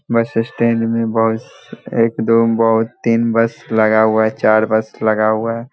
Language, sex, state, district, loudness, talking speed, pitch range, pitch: Hindi, male, Bihar, Jamui, -15 LUFS, 180 wpm, 110-115 Hz, 115 Hz